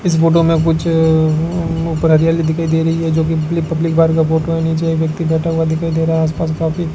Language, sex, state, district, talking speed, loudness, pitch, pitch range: Hindi, male, Rajasthan, Bikaner, 250 wpm, -15 LUFS, 165 Hz, 160-165 Hz